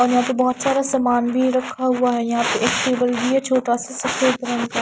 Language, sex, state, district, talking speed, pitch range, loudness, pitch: Hindi, female, Bihar, Katihar, 260 wpm, 245-260 Hz, -19 LUFS, 255 Hz